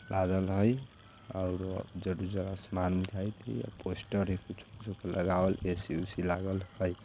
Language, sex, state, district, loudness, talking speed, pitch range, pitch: Bajjika, male, Bihar, Vaishali, -34 LUFS, 160 wpm, 90-100 Hz, 95 Hz